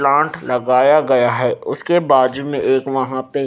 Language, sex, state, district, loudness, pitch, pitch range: Hindi, male, Haryana, Rohtak, -16 LUFS, 135 Hz, 130-145 Hz